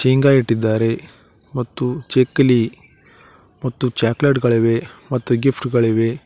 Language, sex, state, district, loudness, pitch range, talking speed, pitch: Kannada, male, Karnataka, Koppal, -18 LUFS, 115-130 Hz, 95 wpm, 125 Hz